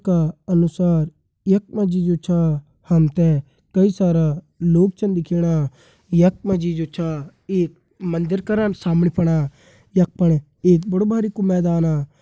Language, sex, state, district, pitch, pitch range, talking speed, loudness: Garhwali, male, Uttarakhand, Tehri Garhwal, 170 Hz, 160-185 Hz, 135 wpm, -19 LUFS